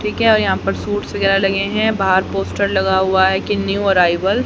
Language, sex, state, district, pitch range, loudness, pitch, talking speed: Hindi, female, Haryana, Rohtak, 190-205 Hz, -16 LUFS, 195 Hz, 240 wpm